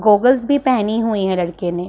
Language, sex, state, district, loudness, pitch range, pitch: Hindi, female, Punjab, Pathankot, -17 LUFS, 185-250 Hz, 215 Hz